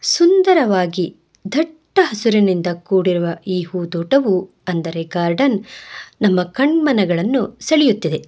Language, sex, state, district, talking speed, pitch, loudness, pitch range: Kannada, female, Karnataka, Bangalore, 85 wpm, 195 Hz, -17 LUFS, 175-275 Hz